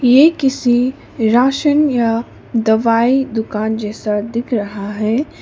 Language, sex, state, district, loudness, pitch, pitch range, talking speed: Hindi, female, Sikkim, Gangtok, -16 LUFS, 235 Hz, 220-260 Hz, 110 wpm